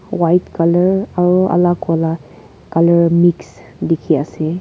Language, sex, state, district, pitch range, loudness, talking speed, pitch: Nagamese, female, Nagaland, Kohima, 165-180 Hz, -15 LUFS, 145 wpm, 170 Hz